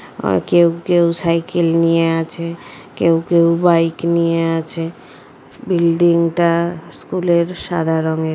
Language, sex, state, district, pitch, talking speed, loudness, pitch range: Bengali, female, West Bengal, Purulia, 170 Hz, 115 wpm, -16 LUFS, 165-170 Hz